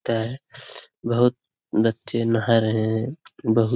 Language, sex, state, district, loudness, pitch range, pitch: Hindi, male, Bihar, Jamui, -23 LUFS, 110-120 Hz, 115 Hz